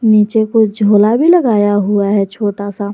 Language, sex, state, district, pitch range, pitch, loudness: Hindi, female, Jharkhand, Garhwa, 205-220 Hz, 205 Hz, -12 LUFS